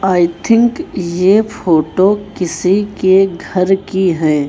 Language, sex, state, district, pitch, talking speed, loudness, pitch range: Hindi, male, Chhattisgarh, Raipur, 185 Hz, 120 wpm, -13 LUFS, 175-200 Hz